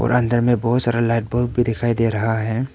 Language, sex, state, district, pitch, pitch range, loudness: Hindi, male, Arunachal Pradesh, Papum Pare, 120 Hz, 115-120 Hz, -18 LUFS